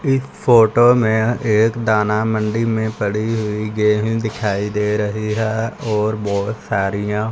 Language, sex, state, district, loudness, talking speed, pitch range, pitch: Hindi, male, Punjab, Fazilka, -18 LUFS, 140 wpm, 105-115 Hz, 110 Hz